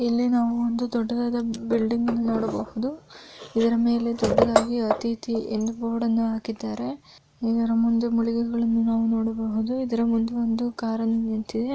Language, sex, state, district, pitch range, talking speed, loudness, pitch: Kannada, female, Karnataka, Raichur, 225-235 Hz, 110 wpm, -24 LUFS, 230 Hz